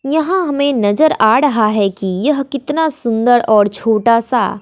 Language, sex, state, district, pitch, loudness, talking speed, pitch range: Hindi, female, Bihar, West Champaran, 245 Hz, -14 LUFS, 170 wpm, 215-290 Hz